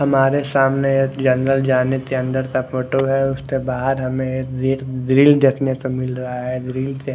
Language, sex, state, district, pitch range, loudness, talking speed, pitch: Hindi, male, Odisha, Khordha, 130-135 Hz, -18 LUFS, 185 wpm, 135 Hz